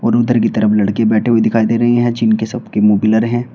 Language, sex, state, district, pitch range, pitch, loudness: Hindi, male, Uttar Pradesh, Shamli, 110-120 Hz, 115 Hz, -14 LUFS